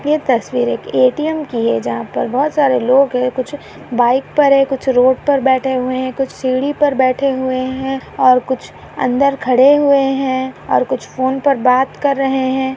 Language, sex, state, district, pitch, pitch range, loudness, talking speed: Hindi, female, Maharashtra, Pune, 260 Hz, 255-275 Hz, -15 LUFS, 195 wpm